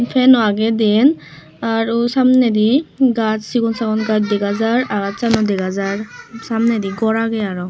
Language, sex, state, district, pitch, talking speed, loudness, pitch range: Chakma, female, Tripura, Unakoti, 225 Hz, 165 wpm, -16 LUFS, 210-235 Hz